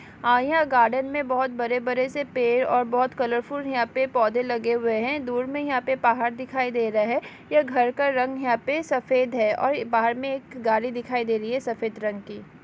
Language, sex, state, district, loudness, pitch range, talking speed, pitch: Hindi, female, Uttarakhand, Tehri Garhwal, -24 LUFS, 235-265 Hz, 215 wpm, 250 Hz